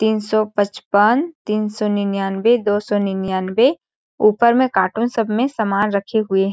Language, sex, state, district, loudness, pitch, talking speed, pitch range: Hindi, female, Chhattisgarh, Balrampur, -18 LUFS, 210 Hz, 165 wpm, 200-230 Hz